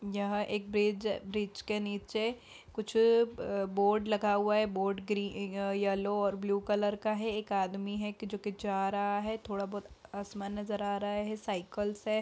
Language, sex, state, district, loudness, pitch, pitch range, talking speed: Hindi, female, Bihar, Darbhanga, -33 LUFS, 205 Hz, 200-210 Hz, 190 wpm